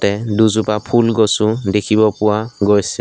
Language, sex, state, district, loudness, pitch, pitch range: Assamese, male, Assam, Sonitpur, -15 LUFS, 110 Hz, 105-110 Hz